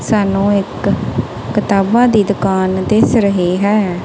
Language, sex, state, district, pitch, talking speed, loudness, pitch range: Punjabi, female, Punjab, Kapurthala, 200 Hz, 120 wpm, -14 LUFS, 190-210 Hz